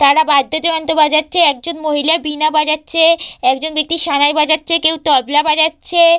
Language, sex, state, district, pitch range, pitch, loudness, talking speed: Bengali, female, West Bengal, Purulia, 300-330 Hz, 315 Hz, -13 LUFS, 135 wpm